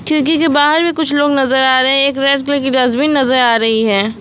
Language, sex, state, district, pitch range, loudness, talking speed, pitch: Hindi, female, West Bengal, Alipurduar, 260-290 Hz, -12 LUFS, 270 wpm, 275 Hz